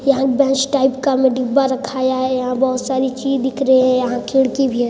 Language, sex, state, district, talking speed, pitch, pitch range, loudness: Hindi, male, Chhattisgarh, Sarguja, 235 wpm, 265 Hz, 255-270 Hz, -16 LUFS